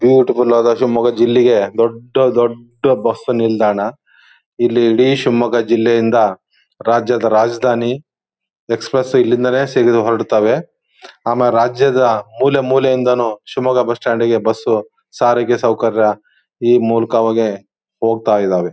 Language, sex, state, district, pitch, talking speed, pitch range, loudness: Kannada, male, Karnataka, Shimoga, 120 Hz, 105 wpm, 115-125 Hz, -14 LUFS